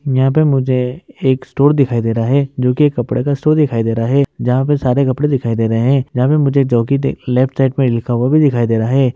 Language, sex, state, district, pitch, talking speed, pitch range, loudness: Hindi, male, Uttar Pradesh, Deoria, 130 Hz, 255 wpm, 125-140 Hz, -14 LUFS